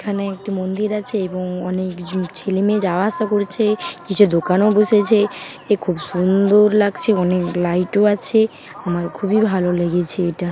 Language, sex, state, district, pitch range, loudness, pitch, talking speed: Bengali, female, West Bengal, Paschim Medinipur, 180-210 Hz, -18 LUFS, 195 Hz, 155 wpm